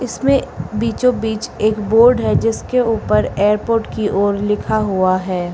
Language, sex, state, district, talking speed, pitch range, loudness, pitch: Hindi, female, Uttar Pradesh, Lucknow, 150 wpm, 200-230 Hz, -16 LUFS, 215 Hz